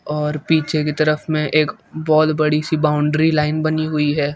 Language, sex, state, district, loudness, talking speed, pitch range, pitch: Hindi, male, Uttar Pradesh, Etah, -18 LUFS, 190 wpm, 150-155 Hz, 155 Hz